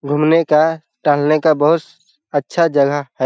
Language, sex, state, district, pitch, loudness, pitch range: Hindi, male, Bihar, Jahanabad, 150 Hz, -15 LUFS, 145-160 Hz